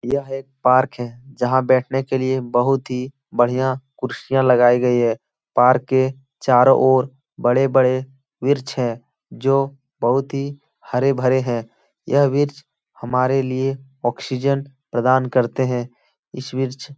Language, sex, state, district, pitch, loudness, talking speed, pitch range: Hindi, male, Uttar Pradesh, Etah, 130 Hz, -19 LUFS, 135 wpm, 125-135 Hz